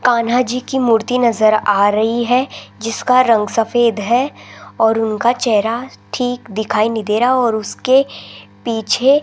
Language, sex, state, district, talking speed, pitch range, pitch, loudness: Hindi, female, Rajasthan, Jaipur, 155 wpm, 220-250 Hz, 230 Hz, -15 LUFS